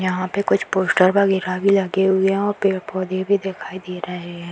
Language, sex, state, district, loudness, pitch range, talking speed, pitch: Hindi, female, Bihar, Darbhanga, -20 LUFS, 185-195 Hz, 210 wpm, 190 Hz